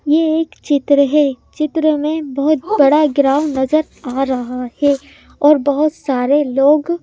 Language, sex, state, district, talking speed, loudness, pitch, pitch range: Hindi, female, Madhya Pradesh, Bhopal, 145 wpm, -15 LUFS, 290 Hz, 275-305 Hz